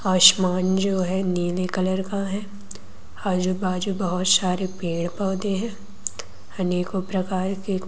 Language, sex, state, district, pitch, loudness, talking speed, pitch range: Hindi, female, Madhya Pradesh, Umaria, 185 Hz, -23 LUFS, 130 wpm, 180-195 Hz